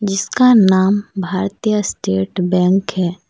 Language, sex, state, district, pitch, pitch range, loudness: Hindi, female, Jharkhand, Deoghar, 190 Hz, 180-205 Hz, -15 LUFS